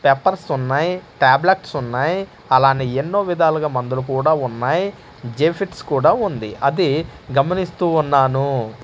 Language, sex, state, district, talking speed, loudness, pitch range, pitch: Telugu, male, Andhra Pradesh, Manyam, 115 wpm, -18 LUFS, 130-175 Hz, 145 Hz